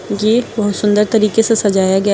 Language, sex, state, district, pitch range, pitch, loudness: Hindi, female, Uttar Pradesh, Lucknow, 205-220 Hz, 210 Hz, -14 LUFS